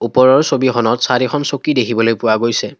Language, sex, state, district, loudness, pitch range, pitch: Assamese, male, Assam, Kamrup Metropolitan, -14 LUFS, 115-135 Hz, 125 Hz